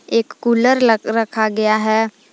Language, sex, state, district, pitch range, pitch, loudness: Hindi, female, Jharkhand, Palamu, 215-230 Hz, 220 Hz, -16 LUFS